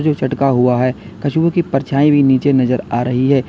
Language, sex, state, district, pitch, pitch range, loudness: Hindi, male, Uttar Pradesh, Lalitpur, 135 Hz, 125-145 Hz, -15 LUFS